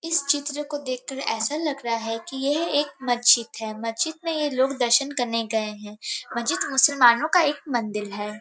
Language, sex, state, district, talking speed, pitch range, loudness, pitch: Hindi, female, Uttar Pradesh, Varanasi, 190 wpm, 230-290 Hz, -23 LUFS, 260 Hz